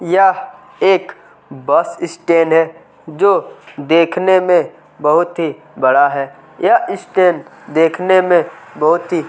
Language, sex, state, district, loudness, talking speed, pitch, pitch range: Hindi, male, Chhattisgarh, Kabirdham, -14 LUFS, 110 wpm, 175 Hz, 160-190 Hz